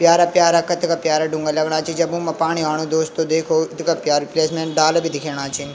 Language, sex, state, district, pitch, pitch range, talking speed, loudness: Garhwali, male, Uttarakhand, Tehri Garhwal, 160 Hz, 155-170 Hz, 210 wpm, -19 LUFS